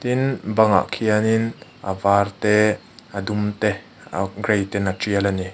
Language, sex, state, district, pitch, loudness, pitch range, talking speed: Mizo, male, Mizoram, Aizawl, 105 Hz, -21 LUFS, 100-110 Hz, 185 wpm